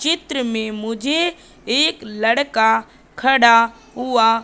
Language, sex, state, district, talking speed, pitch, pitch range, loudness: Hindi, female, Madhya Pradesh, Katni, 95 wpm, 230 Hz, 225-275 Hz, -17 LUFS